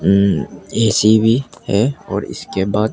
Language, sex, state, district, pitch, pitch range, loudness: Hindi, male, Arunachal Pradesh, Papum Pare, 110 Hz, 100-115 Hz, -16 LUFS